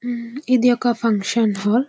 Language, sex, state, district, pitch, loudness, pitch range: Telugu, female, Andhra Pradesh, Visakhapatnam, 240 Hz, -19 LUFS, 225-245 Hz